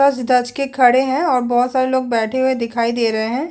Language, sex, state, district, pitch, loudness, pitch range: Hindi, female, Chhattisgarh, Sukma, 250 Hz, -17 LUFS, 240-260 Hz